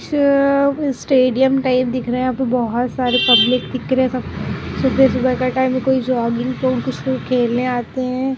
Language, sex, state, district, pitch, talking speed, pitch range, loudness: Hindi, female, Bihar, Muzaffarpur, 255 Hz, 195 wpm, 250-265 Hz, -17 LUFS